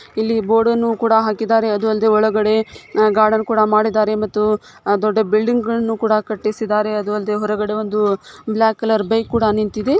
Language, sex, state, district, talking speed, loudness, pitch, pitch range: Kannada, female, Karnataka, Shimoga, 150 wpm, -17 LUFS, 215 Hz, 215-225 Hz